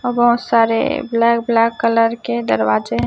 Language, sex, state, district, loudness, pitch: Hindi, female, Chhattisgarh, Raipur, -16 LUFS, 230 Hz